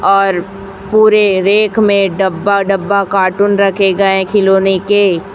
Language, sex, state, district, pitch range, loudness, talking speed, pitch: Hindi, female, Chhattisgarh, Raipur, 195-200 Hz, -11 LUFS, 125 wpm, 195 Hz